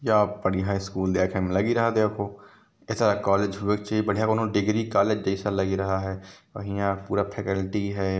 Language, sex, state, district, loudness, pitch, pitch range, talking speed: Hindi, male, Uttar Pradesh, Varanasi, -25 LUFS, 100 Hz, 95-105 Hz, 185 wpm